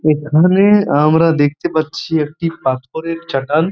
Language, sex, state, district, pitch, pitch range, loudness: Bengali, male, West Bengal, Purulia, 160 Hz, 145-165 Hz, -15 LUFS